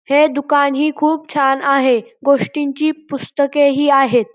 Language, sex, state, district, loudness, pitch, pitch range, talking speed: Marathi, male, Maharashtra, Pune, -15 LUFS, 280 Hz, 275-295 Hz, 140 wpm